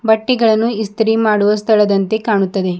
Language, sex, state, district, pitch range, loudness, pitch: Kannada, female, Karnataka, Bidar, 205-220 Hz, -14 LUFS, 220 Hz